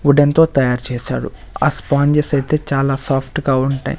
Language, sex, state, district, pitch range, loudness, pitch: Telugu, male, Andhra Pradesh, Sri Satya Sai, 135-145 Hz, -16 LUFS, 140 Hz